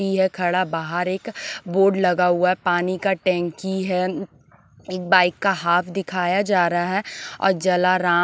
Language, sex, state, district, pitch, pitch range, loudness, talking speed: Hindi, female, Maharashtra, Gondia, 185 Hz, 175-190 Hz, -21 LUFS, 165 wpm